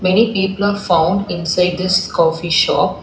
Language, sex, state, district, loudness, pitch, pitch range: English, female, Telangana, Hyderabad, -15 LUFS, 185 Hz, 170-195 Hz